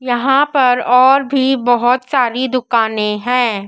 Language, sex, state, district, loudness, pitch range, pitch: Hindi, female, Madhya Pradesh, Dhar, -13 LUFS, 240-265 Hz, 250 Hz